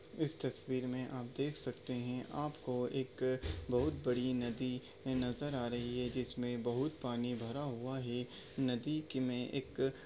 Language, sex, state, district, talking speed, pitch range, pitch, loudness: Hindi, male, Maharashtra, Nagpur, 155 wpm, 125-130 Hz, 125 Hz, -39 LUFS